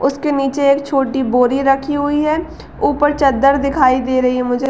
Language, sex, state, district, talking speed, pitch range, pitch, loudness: Hindi, female, Uttar Pradesh, Gorakhpur, 190 wpm, 260-285 Hz, 275 Hz, -15 LUFS